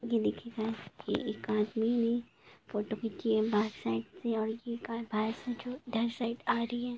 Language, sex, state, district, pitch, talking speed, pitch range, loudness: Hindi, female, Jharkhand, Jamtara, 230 Hz, 120 wpm, 220-235 Hz, -34 LUFS